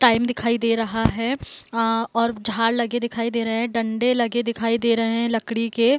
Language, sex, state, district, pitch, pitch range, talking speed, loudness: Hindi, female, Bihar, Gopalganj, 230 Hz, 230-235 Hz, 240 wpm, -22 LUFS